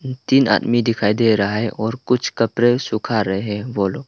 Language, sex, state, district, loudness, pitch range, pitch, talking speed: Hindi, male, Arunachal Pradesh, Lower Dibang Valley, -18 LUFS, 105-125 Hz, 115 Hz, 205 wpm